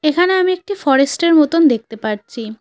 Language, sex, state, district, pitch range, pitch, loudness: Bengali, female, West Bengal, Cooch Behar, 230-350 Hz, 300 Hz, -15 LUFS